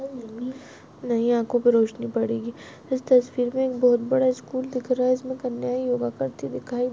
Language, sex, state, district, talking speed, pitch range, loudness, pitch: Hindi, female, Chhattisgarh, Balrampur, 155 wpm, 235-255 Hz, -24 LUFS, 250 Hz